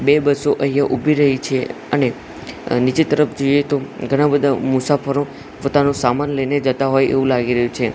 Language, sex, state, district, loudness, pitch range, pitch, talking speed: Gujarati, male, Gujarat, Gandhinagar, -17 LUFS, 130-145 Hz, 140 Hz, 175 wpm